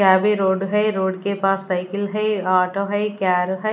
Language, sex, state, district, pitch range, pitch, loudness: Hindi, female, Chandigarh, Chandigarh, 190-205 Hz, 195 Hz, -20 LUFS